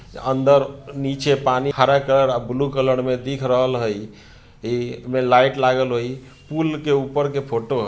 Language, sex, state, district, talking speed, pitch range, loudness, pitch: Bhojpuri, male, Bihar, Sitamarhi, 175 wpm, 125-140 Hz, -20 LUFS, 130 Hz